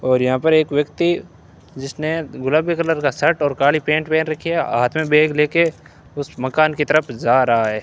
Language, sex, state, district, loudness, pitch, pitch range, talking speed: Hindi, male, Rajasthan, Bikaner, -18 LUFS, 150 Hz, 135-160 Hz, 215 wpm